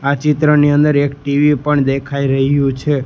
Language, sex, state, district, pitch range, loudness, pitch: Gujarati, male, Gujarat, Gandhinagar, 140-150 Hz, -14 LUFS, 145 Hz